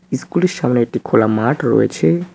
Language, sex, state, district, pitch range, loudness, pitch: Bengali, male, West Bengal, Cooch Behar, 110-145 Hz, -16 LUFS, 120 Hz